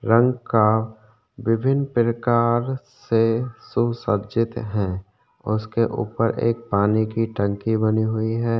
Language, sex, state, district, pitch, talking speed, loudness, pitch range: Hindi, male, Uttarakhand, Tehri Garhwal, 115 Hz, 120 wpm, -22 LUFS, 110-120 Hz